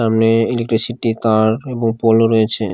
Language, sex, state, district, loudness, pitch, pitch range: Bengali, male, Odisha, Khordha, -15 LUFS, 115 Hz, 110-115 Hz